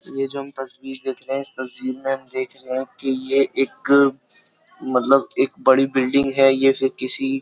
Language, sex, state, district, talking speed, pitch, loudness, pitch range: Hindi, male, Uttar Pradesh, Jyotiba Phule Nagar, 210 wpm, 135 Hz, -19 LUFS, 130-135 Hz